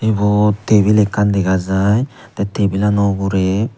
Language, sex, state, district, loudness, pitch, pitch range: Chakma, male, Tripura, Unakoti, -15 LUFS, 105 Hz, 100-105 Hz